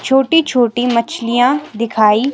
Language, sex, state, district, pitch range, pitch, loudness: Hindi, female, Himachal Pradesh, Shimla, 230-270 Hz, 245 Hz, -14 LUFS